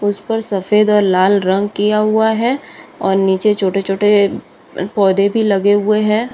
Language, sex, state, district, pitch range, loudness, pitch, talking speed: Hindi, female, Bihar, Saharsa, 195-215 Hz, -14 LUFS, 205 Hz, 150 wpm